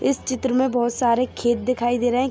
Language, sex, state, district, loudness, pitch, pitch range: Hindi, female, Jharkhand, Sahebganj, -21 LUFS, 245 Hz, 240-255 Hz